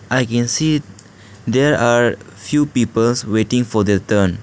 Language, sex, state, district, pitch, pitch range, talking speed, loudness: English, male, Arunachal Pradesh, Lower Dibang Valley, 115 Hz, 105-125 Hz, 150 wpm, -17 LUFS